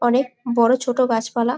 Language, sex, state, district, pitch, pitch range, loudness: Bengali, female, West Bengal, Jalpaiguri, 245 Hz, 235-255 Hz, -19 LUFS